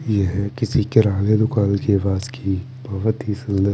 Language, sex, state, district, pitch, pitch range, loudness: Hindi, male, Chandigarh, Chandigarh, 105 Hz, 100-110 Hz, -20 LUFS